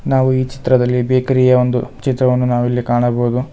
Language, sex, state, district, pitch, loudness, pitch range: Kannada, male, Karnataka, Bangalore, 125 Hz, -15 LUFS, 125-130 Hz